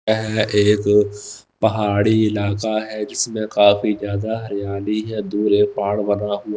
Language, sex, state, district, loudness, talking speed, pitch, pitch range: Hindi, male, Himachal Pradesh, Shimla, -19 LUFS, 135 wpm, 105 Hz, 100-110 Hz